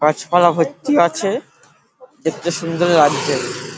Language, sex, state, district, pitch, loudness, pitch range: Bengali, male, West Bengal, Paschim Medinipur, 170 Hz, -17 LUFS, 160-195 Hz